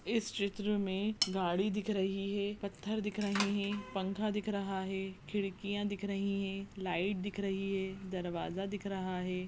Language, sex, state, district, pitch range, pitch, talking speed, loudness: Hindi, female, Goa, North and South Goa, 190-205 Hz, 200 Hz, 170 wpm, -36 LUFS